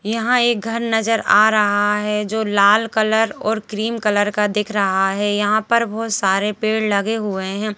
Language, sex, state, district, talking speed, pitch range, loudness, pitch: Hindi, female, Madhya Pradesh, Bhopal, 195 wpm, 205-225 Hz, -18 LUFS, 215 Hz